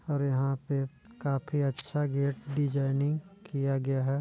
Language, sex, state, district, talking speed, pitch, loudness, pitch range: Hindi, male, Chhattisgarh, Raigarh, 140 wpm, 140 Hz, -31 LUFS, 135-145 Hz